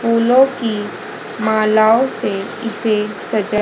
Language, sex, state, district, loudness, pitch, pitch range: Hindi, female, Haryana, Rohtak, -16 LUFS, 220 Hz, 210-230 Hz